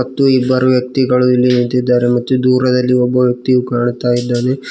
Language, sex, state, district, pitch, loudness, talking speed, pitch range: Kannada, male, Karnataka, Koppal, 125 Hz, -13 LUFS, 125 wpm, 125-130 Hz